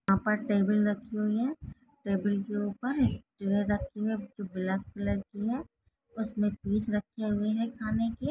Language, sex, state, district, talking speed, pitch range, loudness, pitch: Hindi, female, Chhattisgarh, Rajnandgaon, 180 wpm, 200-220 Hz, -31 LUFS, 210 Hz